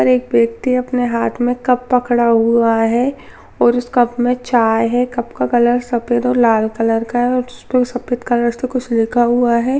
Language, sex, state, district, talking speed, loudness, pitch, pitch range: Hindi, female, Rajasthan, Churu, 215 wpm, -16 LUFS, 240 Hz, 230-250 Hz